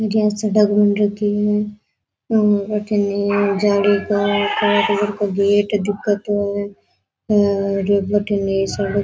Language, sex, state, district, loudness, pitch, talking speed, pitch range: Rajasthani, female, Rajasthan, Nagaur, -18 LUFS, 205 Hz, 95 wpm, 200-210 Hz